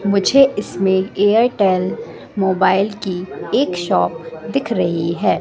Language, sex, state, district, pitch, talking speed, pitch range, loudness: Hindi, female, Madhya Pradesh, Katni, 195 Hz, 110 wpm, 185-205 Hz, -17 LUFS